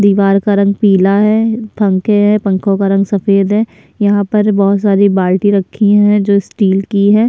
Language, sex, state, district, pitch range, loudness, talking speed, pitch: Hindi, female, Chhattisgarh, Sukma, 195-210 Hz, -11 LUFS, 190 wpm, 200 Hz